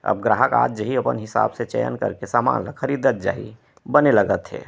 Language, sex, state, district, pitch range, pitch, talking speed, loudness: Chhattisgarhi, male, Chhattisgarh, Rajnandgaon, 105-130 Hz, 115 Hz, 180 wpm, -20 LUFS